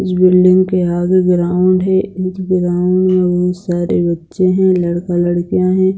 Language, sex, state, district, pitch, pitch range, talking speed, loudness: Hindi, female, Bihar, Purnia, 185 Hz, 175-185 Hz, 160 wpm, -14 LUFS